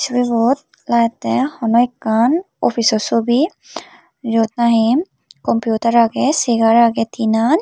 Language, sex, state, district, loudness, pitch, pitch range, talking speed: Chakma, female, Tripura, Unakoti, -16 LUFS, 235 Hz, 225-255 Hz, 110 wpm